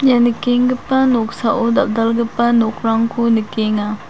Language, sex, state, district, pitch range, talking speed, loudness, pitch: Garo, female, Meghalaya, South Garo Hills, 225-240 Hz, 90 wpm, -16 LUFS, 230 Hz